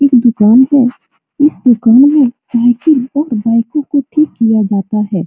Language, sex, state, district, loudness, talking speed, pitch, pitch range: Hindi, female, Bihar, Supaul, -11 LUFS, 170 wpm, 245 Hz, 225-285 Hz